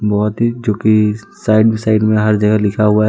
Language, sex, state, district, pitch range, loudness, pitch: Hindi, male, Jharkhand, Deoghar, 105-110 Hz, -14 LUFS, 110 Hz